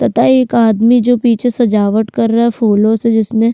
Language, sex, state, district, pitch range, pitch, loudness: Hindi, female, Uttarakhand, Tehri Garhwal, 220-240 Hz, 230 Hz, -12 LUFS